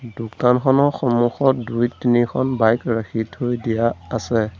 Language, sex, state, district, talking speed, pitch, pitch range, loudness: Assamese, male, Assam, Sonitpur, 115 wpm, 120 Hz, 115-125 Hz, -19 LUFS